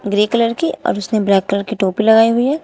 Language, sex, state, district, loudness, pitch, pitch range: Hindi, female, Uttar Pradesh, Shamli, -15 LUFS, 220 Hz, 200-230 Hz